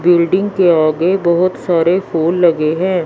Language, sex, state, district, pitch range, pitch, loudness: Hindi, female, Chandigarh, Chandigarh, 165-185 Hz, 175 Hz, -13 LUFS